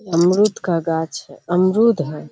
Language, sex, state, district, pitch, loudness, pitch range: Hindi, female, Bihar, Kishanganj, 175 Hz, -18 LUFS, 160-195 Hz